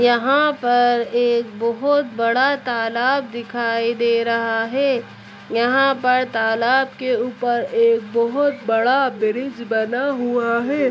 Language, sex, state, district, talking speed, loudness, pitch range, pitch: Hindi, female, Uttar Pradesh, Etah, 120 wpm, -19 LUFS, 230-265 Hz, 240 Hz